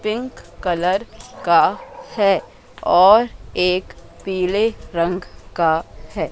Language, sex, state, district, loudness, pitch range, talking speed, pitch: Hindi, female, Madhya Pradesh, Katni, -19 LUFS, 180-215 Hz, 95 wpm, 190 Hz